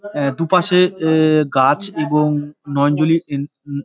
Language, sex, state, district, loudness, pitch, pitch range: Bengali, male, West Bengal, Dakshin Dinajpur, -17 LUFS, 150 Hz, 145-165 Hz